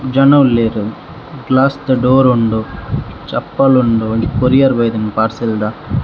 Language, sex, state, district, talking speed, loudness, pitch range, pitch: Tulu, male, Karnataka, Dakshina Kannada, 140 wpm, -14 LUFS, 110-135 Hz, 125 Hz